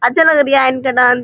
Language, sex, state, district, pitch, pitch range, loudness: Hindi, female, Uttar Pradesh, Muzaffarnagar, 260 Hz, 250-285 Hz, -12 LUFS